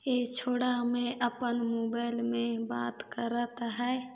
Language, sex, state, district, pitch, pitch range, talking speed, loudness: Chhattisgarhi, female, Chhattisgarh, Balrampur, 240 Hz, 235-245 Hz, 145 wpm, -32 LUFS